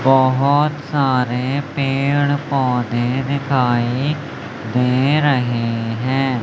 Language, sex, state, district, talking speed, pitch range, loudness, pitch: Hindi, male, Madhya Pradesh, Umaria, 75 wpm, 125-140 Hz, -18 LUFS, 135 Hz